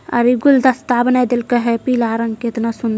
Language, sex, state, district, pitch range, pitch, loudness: Hindi, female, Bihar, Jamui, 230-250 Hz, 240 Hz, -15 LUFS